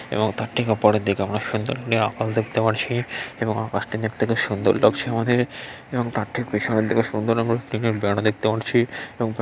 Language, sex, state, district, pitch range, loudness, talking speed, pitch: Bengali, male, West Bengal, Dakshin Dinajpur, 110-120 Hz, -22 LUFS, 180 wpm, 110 Hz